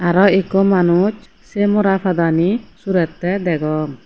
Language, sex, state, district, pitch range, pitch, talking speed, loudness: Chakma, female, Tripura, Unakoti, 170-195 Hz, 185 Hz, 120 wpm, -16 LUFS